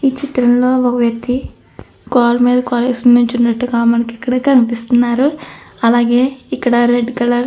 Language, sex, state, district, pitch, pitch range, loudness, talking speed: Telugu, female, Andhra Pradesh, Anantapur, 245 Hz, 240-250 Hz, -14 LUFS, 145 wpm